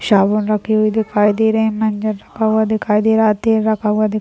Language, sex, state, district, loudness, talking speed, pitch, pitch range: Hindi, male, Chhattisgarh, Raigarh, -16 LUFS, 255 wpm, 215 Hz, 210-220 Hz